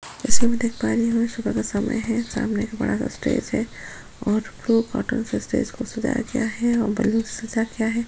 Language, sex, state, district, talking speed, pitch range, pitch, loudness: Hindi, female, Chhattisgarh, Sukma, 225 wpm, 225-235 Hz, 230 Hz, -24 LUFS